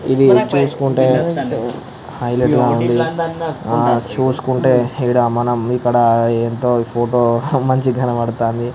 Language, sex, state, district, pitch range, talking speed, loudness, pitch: Telugu, male, Andhra Pradesh, Visakhapatnam, 120-130 Hz, 95 wpm, -16 LUFS, 125 Hz